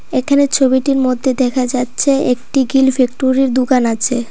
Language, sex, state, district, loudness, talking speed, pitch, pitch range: Bengali, female, Tripura, Dhalai, -14 LUFS, 140 wpm, 260 Hz, 250-270 Hz